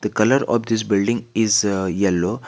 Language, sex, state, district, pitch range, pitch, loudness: English, male, Jharkhand, Garhwa, 100-115 Hz, 105 Hz, -19 LUFS